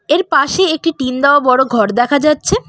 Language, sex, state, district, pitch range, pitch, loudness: Bengali, female, West Bengal, Cooch Behar, 255-315 Hz, 285 Hz, -13 LUFS